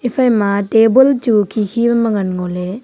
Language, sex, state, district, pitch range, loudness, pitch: Wancho, female, Arunachal Pradesh, Longding, 200-235 Hz, -14 LUFS, 220 Hz